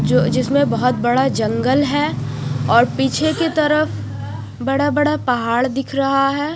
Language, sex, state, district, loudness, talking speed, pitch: Hindi, female, Punjab, Fazilka, -17 LUFS, 145 wpm, 260 Hz